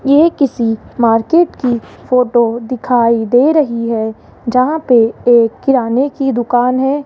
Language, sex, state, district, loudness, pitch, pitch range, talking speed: Hindi, female, Rajasthan, Jaipur, -13 LUFS, 245 Hz, 235-270 Hz, 135 wpm